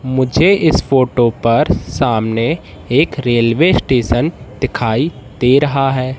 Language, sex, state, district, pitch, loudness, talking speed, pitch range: Hindi, male, Madhya Pradesh, Katni, 130 Hz, -14 LUFS, 115 wpm, 120-145 Hz